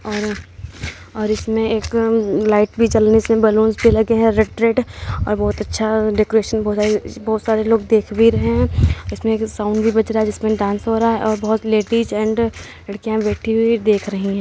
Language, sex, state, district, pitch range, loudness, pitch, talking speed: Hindi, male, Uttar Pradesh, Varanasi, 210-225 Hz, -17 LUFS, 220 Hz, 205 wpm